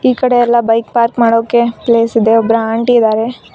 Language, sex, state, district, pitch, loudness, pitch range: Kannada, female, Karnataka, Koppal, 230 Hz, -12 LUFS, 225-240 Hz